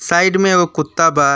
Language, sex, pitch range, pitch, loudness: Bhojpuri, male, 155-180 Hz, 170 Hz, -14 LUFS